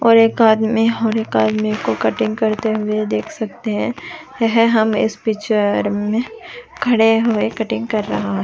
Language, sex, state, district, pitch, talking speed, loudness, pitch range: Hindi, female, Chhattisgarh, Raigarh, 220 Hz, 170 wpm, -17 LUFS, 210-230 Hz